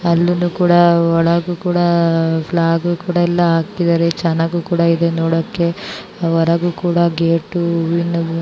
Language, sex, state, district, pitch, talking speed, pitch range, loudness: Kannada, female, Karnataka, Bijapur, 170 Hz, 100 wpm, 165-175 Hz, -16 LUFS